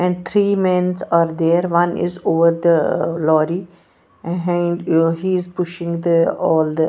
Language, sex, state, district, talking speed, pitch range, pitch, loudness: English, female, Punjab, Pathankot, 150 wpm, 165-180 Hz, 170 Hz, -18 LUFS